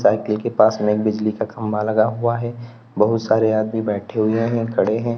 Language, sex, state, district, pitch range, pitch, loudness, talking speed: Hindi, male, Uttar Pradesh, Lalitpur, 110-115 Hz, 110 Hz, -19 LUFS, 220 wpm